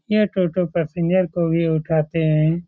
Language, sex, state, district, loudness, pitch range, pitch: Hindi, male, Bihar, Supaul, -20 LUFS, 160-180 Hz, 170 Hz